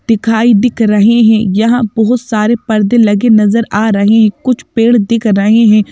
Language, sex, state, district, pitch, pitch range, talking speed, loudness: Hindi, female, Madhya Pradesh, Bhopal, 225 Hz, 215-230 Hz, 180 wpm, -10 LUFS